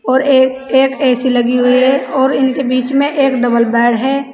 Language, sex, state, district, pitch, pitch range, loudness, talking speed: Hindi, female, Uttar Pradesh, Saharanpur, 265 Hz, 250-270 Hz, -12 LUFS, 205 wpm